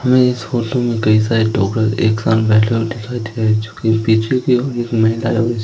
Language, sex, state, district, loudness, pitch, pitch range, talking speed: Hindi, male, Madhya Pradesh, Katni, -16 LUFS, 115 Hz, 110-120 Hz, 245 wpm